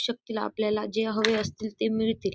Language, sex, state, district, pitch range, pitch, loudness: Marathi, female, Maharashtra, Dhule, 215-225 Hz, 220 Hz, -28 LUFS